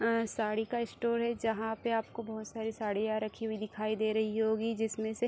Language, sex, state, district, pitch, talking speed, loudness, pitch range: Hindi, female, Bihar, Supaul, 220 Hz, 215 wpm, -34 LUFS, 220-230 Hz